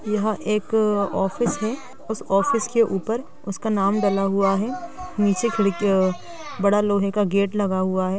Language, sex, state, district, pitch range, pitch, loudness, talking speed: Hindi, female, Bihar, East Champaran, 195-225 Hz, 205 Hz, -22 LUFS, 170 wpm